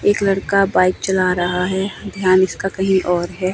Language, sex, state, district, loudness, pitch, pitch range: Hindi, female, Himachal Pradesh, Shimla, -17 LUFS, 190 Hz, 185-195 Hz